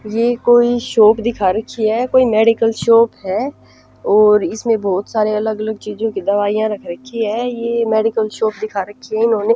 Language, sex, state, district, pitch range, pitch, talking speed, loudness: Hindi, female, Punjab, Pathankot, 215-235 Hz, 225 Hz, 180 wpm, -16 LUFS